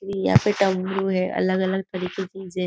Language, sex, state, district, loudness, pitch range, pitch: Hindi, female, Maharashtra, Nagpur, -23 LUFS, 185-195 Hz, 190 Hz